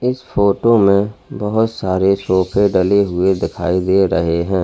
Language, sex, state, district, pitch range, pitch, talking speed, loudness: Hindi, male, Uttar Pradesh, Lalitpur, 95-100 Hz, 95 Hz, 155 wpm, -16 LUFS